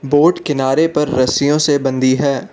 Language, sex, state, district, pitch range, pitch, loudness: Hindi, male, Arunachal Pradesh, Lower Dibang Valley, 130-150 Hz, 140 Hz, -14 LUFS